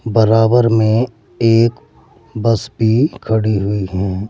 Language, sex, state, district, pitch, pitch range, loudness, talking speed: Hindi, male, Uttar Pradesh, Saharanpur, 115 Hz, 110-115 Hz, -15 LUFS, 110 wpm